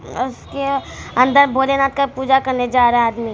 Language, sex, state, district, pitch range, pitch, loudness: Hindi, female, Bihar, Araria, 245-275 Hz, 265 Hz, -16 LUFS